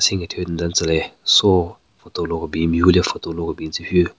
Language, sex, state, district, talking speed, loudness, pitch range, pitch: Rengma, male, Nagaland, Kohima, 230 wpm, -19 LUFS, 85-90 Hz, 85 Hz